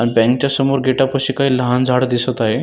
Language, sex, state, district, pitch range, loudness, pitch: Marathi, male, Maharashtra, Dhule, 125-135 Hz, -16 LUFS, 130 Hz